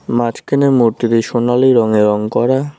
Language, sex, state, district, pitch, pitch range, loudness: Bengali, male, West Bengal, Cooch Behar, 120 Hz, 115-130 Hz, -14 LUFS